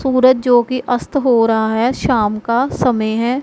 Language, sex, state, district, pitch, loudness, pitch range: Hindi, female, Punjab, Pathankot, 245 Hz, -15 LUFS, 225-255 Hz